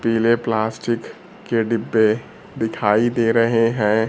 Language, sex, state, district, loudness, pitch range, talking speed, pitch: Hindi, male, Bihar, Kaimur, -19 LUFS, 110-115 Hz, 115 wpm, 115 Hz